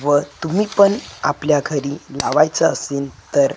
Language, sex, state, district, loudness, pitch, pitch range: Marathi, male, Maharashtra, Gondia, -18 LUFS, 145 Hz, 140-170 Hz